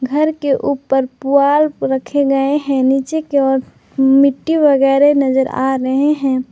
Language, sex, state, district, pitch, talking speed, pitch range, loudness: Hindi, female, Jharkhand, Garhwa, 275 Hz, 145 wpm, 265-290 Hz, -14 LUFS